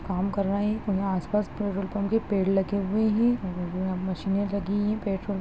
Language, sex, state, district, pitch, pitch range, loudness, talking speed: Hindi, female, Bihar, Begusarai, 200 Hz, 190-210 Hz, -27 LUFS, 210 wpm